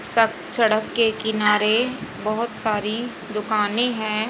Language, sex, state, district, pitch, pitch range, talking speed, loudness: Hindi, female, Haryana, Rohtak, 220 Hz, 215-230 Hz, 110 wpm, -21 LUFS